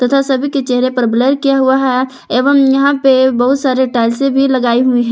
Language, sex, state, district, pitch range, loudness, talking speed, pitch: Hindi, female, Jharkhand, Palamu, 250-275 Hz, -12 LUFS, 220 wpm, 260 Hz